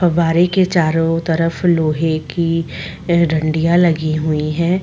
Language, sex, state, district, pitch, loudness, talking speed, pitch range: Hindi, female, Chhattisgarh, Rajnandgaon, 165 Hz, -16 LUFS, 125 wpm, 155-170 Hz